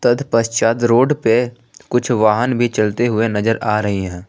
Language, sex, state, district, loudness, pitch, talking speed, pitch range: Hindi, male, Jharkhand, Palamu, -16 LUFS, 115 Hz, 180 wpm, 110-120 Hz